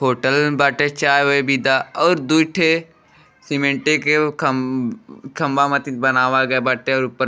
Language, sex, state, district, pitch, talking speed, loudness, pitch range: Bhojpuri, male, Uttar Pradesh, Deoria, 140 Hz, 155 wpm, -17 LUFS, 130-155 Hz